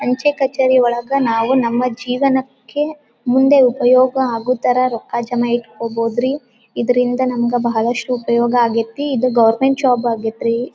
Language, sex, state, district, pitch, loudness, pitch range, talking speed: Kannada, female, Karnataka, Dharwad, 250 Hz, -16 LUFS, 235-260 Hz, 125 wpm